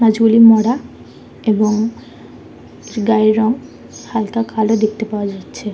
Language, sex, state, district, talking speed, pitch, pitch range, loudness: Bengali, male, West Bengal, Kolkata, 105 wpm, 220 Hz, 215-225 Hz, -15 LUFS